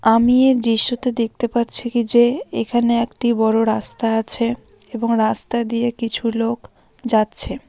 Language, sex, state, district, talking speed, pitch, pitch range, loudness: Bengali, female, West Bengal, Dakshin Dinajpur, 140 wpm, 235 Hz, 225-240 Hz, -17 LUFS